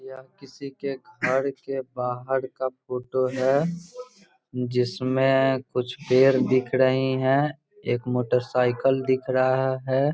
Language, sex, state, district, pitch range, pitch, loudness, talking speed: Hindi, male, Bihar, Muzaffarpur, 130-135 Hz, 130 Hz, -24 LUFS, 125 wpm